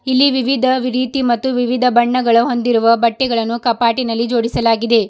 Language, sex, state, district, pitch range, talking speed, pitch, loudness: Kannada, female, Karnataka, Bidar, 235-255 Hz, 120 wpm, 240 Hz, -15 LUFS